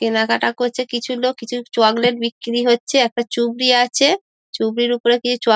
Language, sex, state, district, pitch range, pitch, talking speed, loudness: Bengali, female, West Bengal, Dakshin Dinajpur, 235-245 Hz, 240 Hz, 185 wpm, -18 LUFS